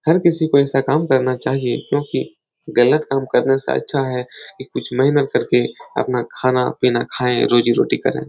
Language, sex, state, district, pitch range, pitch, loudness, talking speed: Hindi, male, Uttar Pradesh, Etah, 125-140 Hz, 135 Hz, -18 LUFS, 165 wpm